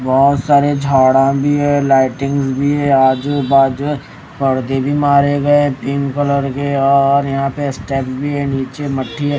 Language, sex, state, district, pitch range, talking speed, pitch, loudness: Hindi, male, Odisha, Khordha, 135-145 Hz, 160 wpm, 140 Hz, -14 LUFS